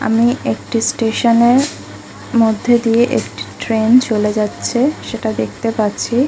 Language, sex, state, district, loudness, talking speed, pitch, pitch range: Bengali, female, West Bengal, Kolkata, -15 LUFS, 115 wpm, 230 Hz, 225-245 Hz